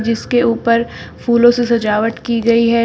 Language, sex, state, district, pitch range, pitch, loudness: Hindi, female, Uttar Pradesh, Shamli, 230-235 Hz, 230 Hz, -14 LUFS